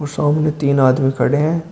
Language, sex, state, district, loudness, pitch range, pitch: Hindi, male, Uttar Pradesh, Shamli, -16 LUFS, 135-155 Hz, 145 Hz